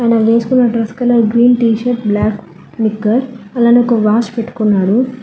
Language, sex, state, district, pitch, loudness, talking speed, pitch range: Telugu, female, Telangana, Hyderabad, 230 Hz, -13 LUFS, 140 wpm, 220-240 Hz